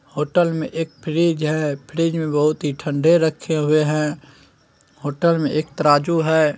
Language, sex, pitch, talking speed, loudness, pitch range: Hindi, male, 155 Hz, 165 wpm, -19 LUFS, 150-165 Hz